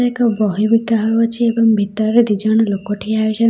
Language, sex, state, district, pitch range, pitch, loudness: Odia, female, Odisha, Khordha, 215-230 Hz, 220 Hz, -15 LUFS